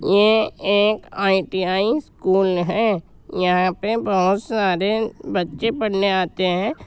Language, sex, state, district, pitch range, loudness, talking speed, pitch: Hindi, male, Uttar Pradesh, Jyotiba Phule Nagar, 185-210 Hz, -20 LUFS, 115 wpm, 195 Hz